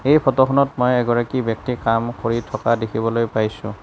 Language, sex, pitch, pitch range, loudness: Assamese, male, 120 Hz, 115-130 Hz, -19 LUFS